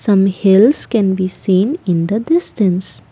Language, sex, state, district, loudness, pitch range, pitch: English, female, Assam, Kamrup Metropolitan, -14 LUFS, 185-220 Hz, 195 Hz